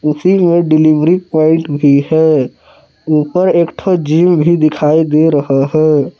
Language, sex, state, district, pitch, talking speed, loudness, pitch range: Hindi, male, Jharkhand, Palamu, 155 Hz, 145 wpm, -11 LUFS, 150-170 Hz